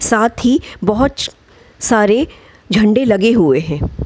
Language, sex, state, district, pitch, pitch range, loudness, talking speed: Hindi, female, Bihar, Gaya, 225 Hz, 215-245 Hz, -14 LUFS, 120 wpm